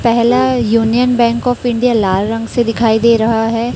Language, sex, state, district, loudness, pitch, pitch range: Hindi, female, Chhattisgarh, Raipur, -13 LUFS, 235 Hz, 225-245 Hz